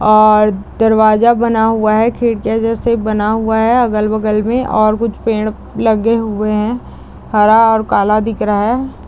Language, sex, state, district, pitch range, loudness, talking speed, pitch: Hindi, female, Bihar, Madhepura, 215-230 Hz, -13 LUFS, 165 wpm, 220 Hz